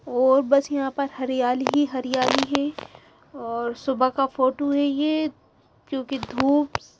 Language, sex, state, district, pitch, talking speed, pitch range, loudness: Hindi, female, Haryana, Charkhi Dadri, 270 Hz, 145 wpm, 260-285 Hz, -23 LUFS